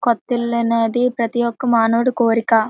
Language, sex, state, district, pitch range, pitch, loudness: Telugu, female, Andhra Pradesh, Srikakulam, 230-240 Hz, 235 Hz, -17 LUFS